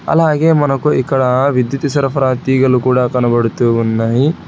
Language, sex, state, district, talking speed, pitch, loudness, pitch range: Telugu, male, Telangana, Hyderabad, 120 wpm, 130 Hz, -13 LUFS, 125-140 Hz